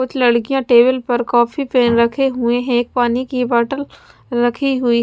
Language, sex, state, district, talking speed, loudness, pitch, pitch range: Hindi, female, Punjab, Pathankot, 165 wpm, -16 LUFS, 245 Hz, 240-260 Hz